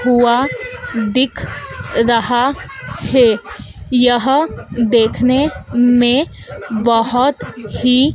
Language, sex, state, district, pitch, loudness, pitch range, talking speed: Hindi, female, Madhya Pradesh, Dhar, 245 Hz, -15 LUFS, 235-265 Hz, 65 wpm